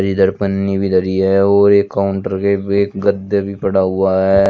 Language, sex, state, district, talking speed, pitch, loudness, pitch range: Hindi, male, Uttar Pradesh, Shamli, 200 wpm, 100 Hz, -15 LUFS, 95-100 Hz